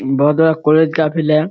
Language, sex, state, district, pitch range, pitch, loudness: Hindi, male, Bihar, Kishanganj, 150-160 Hz, 155 Hz, -14 LUFS